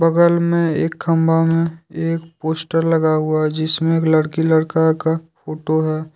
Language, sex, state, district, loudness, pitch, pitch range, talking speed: Hindi, male, Jharkhand, Deoghar, -17 LUFS, 160 Hz, 155-165 Hz, 165 wpm